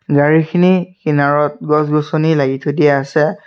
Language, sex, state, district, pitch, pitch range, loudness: Assamese, male, Assam, Sonitpur, 150 Hz, 145-160 Hz, -14 LUFS